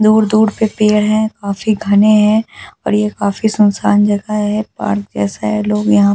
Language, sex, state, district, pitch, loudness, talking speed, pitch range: Hindi, female, Delhi, New Delhi, 210 Hz, -14 LUFS, 195 wpm, 195-215 Hz